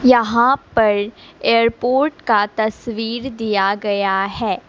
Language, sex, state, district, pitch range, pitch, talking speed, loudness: Hindi, female, Assam, Kamrup Metropolitan, 205-245 Hz, 225 Hz, 100 wpm, -18 LUFS